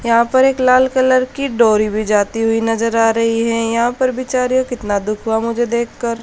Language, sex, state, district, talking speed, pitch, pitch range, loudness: Hindi, female, Haryana, Charkhi Dadri, 220 wpm, 230 Hz, 225-255 Hz, -15 LUFS